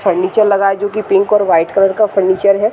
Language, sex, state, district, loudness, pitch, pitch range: Hindi, female, Bihar, Gaya, -13 LUFS, 200 Hz, 190-210 Hz